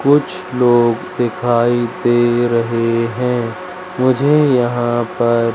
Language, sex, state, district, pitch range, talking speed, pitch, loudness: Hindi, male, Madhya Pradesh, Katni, 120-130 Hz, 95 wpm, 120 Hz, -15 LUFS